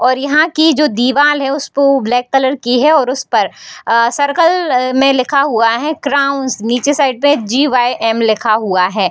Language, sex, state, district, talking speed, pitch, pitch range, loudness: Hindi, female, Bihar, Darbhanga, 185 wpm, 270 Hz, 240-285 Hz, -13 LUFS